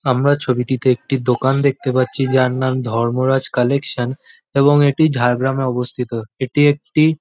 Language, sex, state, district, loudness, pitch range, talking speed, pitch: Bengali, male, West Bengal, Jhargram, -17 LUFS, 125-140 Hz, 135 wpm, 130 Hz